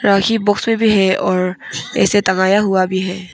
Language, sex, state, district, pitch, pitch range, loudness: Hindi, female, Arunachal Pradesh, Papum Pare, 195 Hz, 185-205 Hz, -15 LUFS